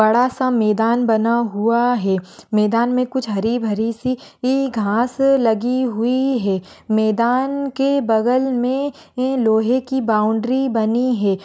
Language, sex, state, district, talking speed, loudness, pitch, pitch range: Hindi, female, Rajasthan, Churu, 130 wpm, -18 LUFS, 235 Hz, 220-255 Hz